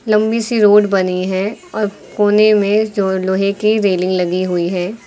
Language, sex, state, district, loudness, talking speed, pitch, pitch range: Hindi, female, Uttar Pradesh, Lucknow, -15 LUFS, 180 wpm, 200 Hz, 185-215 Hz